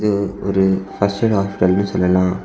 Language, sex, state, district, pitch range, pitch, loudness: Tamil, male, Tamil Nadu, Kanyakumari, 95-100 Hz, 100 Hz, -17 LUFS